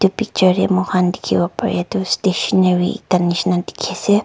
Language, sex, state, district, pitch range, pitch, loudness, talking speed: Nagamese, male, Nagaland, Kohima, 180-195 Hz, 185 Hz, -17 LUFS, 210 wpm